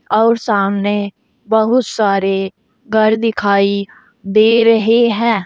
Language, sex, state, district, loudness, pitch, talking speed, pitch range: Hindi, female, Uttar Pradesh, Saharanpur, -14 LUFS, 215 Hz, 100 wpm, 200-230 Hz